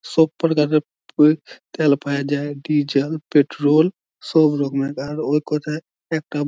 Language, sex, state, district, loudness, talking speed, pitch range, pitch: Bengali, male, West Bengal, Malda, -20 LUFS, 120 wpm, 145-155 Hz, 150 Hz